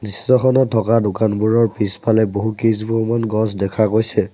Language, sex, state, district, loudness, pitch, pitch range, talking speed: Assamese, male, Assam, Sonitpur, -17 LUFS, 110 Hz, 105-115 Hz, 110 wpm